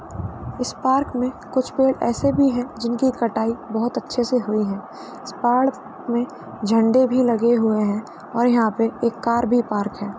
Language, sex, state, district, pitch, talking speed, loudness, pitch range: Hindi, female, Uttar Pradesh, Varanasi, 235 Hz, 180 wpm, -21 LUFS, 220-255 Hz